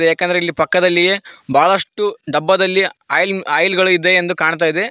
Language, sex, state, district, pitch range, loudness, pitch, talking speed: Kannada, male, Karnataka, Koppal, 165-190 Hz, -14 LUFS, 180 Hz, 120 wpm